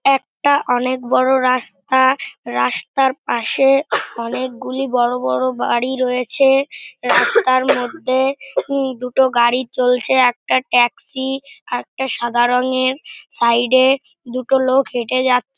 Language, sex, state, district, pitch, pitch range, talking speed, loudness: Bengali, male, West Bengal, North 24 Parganas, 255 Hz, 245-270 Hz, 110 wpm, -17 LUFS